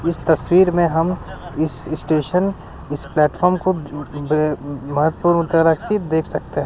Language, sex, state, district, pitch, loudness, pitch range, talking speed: Hindi, male, Bihar, West Champaran, 160 Hz, -18 LUFS, 150-175 Hz, 135 wpm